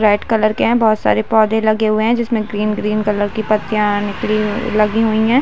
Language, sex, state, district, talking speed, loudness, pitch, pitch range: Hindi, female, Chhattisgarh, Bilaspur, 235 wpm, -16 LUFS, 215 Hz, 210-220 Hz